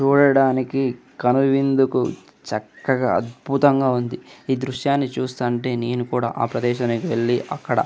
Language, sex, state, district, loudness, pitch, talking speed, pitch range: Telugu, male, Andhra Pradesh, Anantapur, -21 LUFS, 130 Hz, 115 wpm, 120-135 Hz